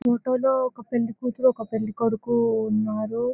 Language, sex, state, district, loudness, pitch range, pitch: Telugu, female, Andhra Pradesh, Anantapur, -24 LUFS, 225-250 Hz, 235 Hz